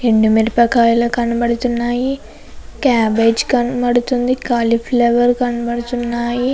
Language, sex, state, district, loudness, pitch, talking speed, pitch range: Telugu, female, Andhra Pradesh, Anantapur, -15 LUFS, 240 Hz, 75 wpm, 235-245 Hz